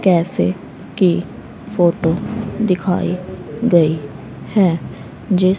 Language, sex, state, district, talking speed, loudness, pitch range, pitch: Hindi, female, Haryana, Rohtak, 75 wpm, -18 LUFS, 170-190 Hz, 180 Hz